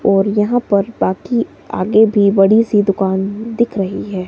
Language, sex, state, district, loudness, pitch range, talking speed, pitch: Hindi, female, Himachal Pradesh, Shimla, -15 LUFS, 195-225 Hz, 170 wpm, 205 Hz